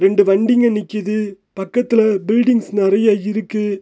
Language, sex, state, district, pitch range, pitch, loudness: Tamil, male, Tamil Nadu, Nilgiris, 200-220 Hz, 210 Hz, -16 LUFS